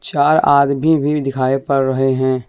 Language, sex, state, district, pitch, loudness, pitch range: Hindi, male, Jharkhand, Deoghar, 135 Hz, -15 LUFS, 130-140 Hz